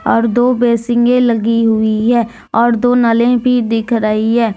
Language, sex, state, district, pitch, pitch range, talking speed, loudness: Hindi, female, Jharkhand, Deoghar, 235 Hz, 225-240 Hz, 185 wpm, -13 LUFS